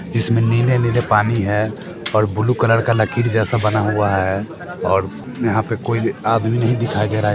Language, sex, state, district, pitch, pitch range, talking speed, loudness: Hindi, male, Bihar, Sitamarhi, 115 Hz, 105-120 Hz, 190 wpm, -18 LUFS